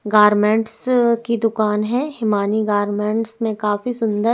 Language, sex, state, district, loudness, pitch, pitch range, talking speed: Hindi, female, Uttarakhand, Tehri Garhwal, -19 LUFS, 220 Hz, 210-230 Hz, 140 wpm